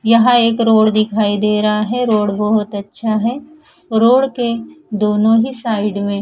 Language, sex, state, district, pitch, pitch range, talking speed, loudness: Hindi, female, Punjab, Fazilka, 220 Hz, 210-240 Hz, 155 wpm, -15 LUFS